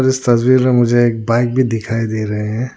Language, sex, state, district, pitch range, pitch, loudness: Hindi, male, Arunachal Pradesh, Lower Dibang Valley, 115-125 Hz, 120 Hz, -15 LUFS